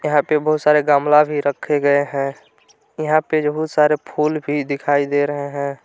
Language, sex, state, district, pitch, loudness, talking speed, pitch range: Hindi, male, Jharkhand, Palamu, 145 Hz, -18 LUFS, 195 wpm, 145-150 Hz